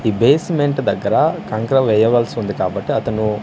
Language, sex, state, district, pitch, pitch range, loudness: Telugu, male, Andhra Pradesh, Manyam, 115 Hz, 110-140 Hz, -17 LUFS